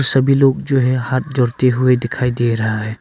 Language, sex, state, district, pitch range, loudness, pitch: Hindi, male, Arunachal Pradesh, Longding, 120-135 Hz, -16 LUFS, 125 Hz